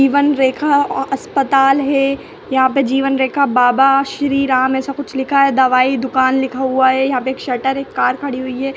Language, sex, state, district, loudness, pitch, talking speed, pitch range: Hindi, female, Chhattisgarh, Rajnandgaon, -15 LUFS, 270 Hz, 200 wpm, 260-275 Hz